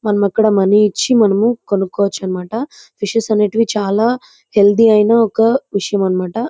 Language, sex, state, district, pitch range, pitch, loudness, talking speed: Telugu, female, Andhra Pradesh, Chittoor, 200-230 Hz, 210 Hz, -14 LUFS, 130 wpm